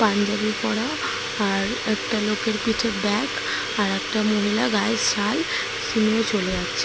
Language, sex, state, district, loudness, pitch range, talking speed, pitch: Bengali, female, West Bengal, Jalpaiguri, -22 LUFS, 205-225 Hz, 140 wpm, 215 Hz